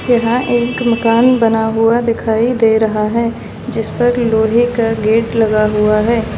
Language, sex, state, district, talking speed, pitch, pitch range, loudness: Hindi, female, Uttar Pradesh, Lalitpur, 160 wpm, 230 Hz, 220-240 Hz, -13 LUFS